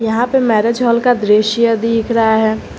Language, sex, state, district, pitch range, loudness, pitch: Hindi, female, Jharkhand, Garhwa, 220-235 Hz, -13 LUFS, 230 Hz